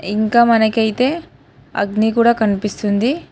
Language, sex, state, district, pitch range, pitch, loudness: Telugu, female, Telangana, Hyderabad, 210-235 Hz, 220 Hz, -16 LUFS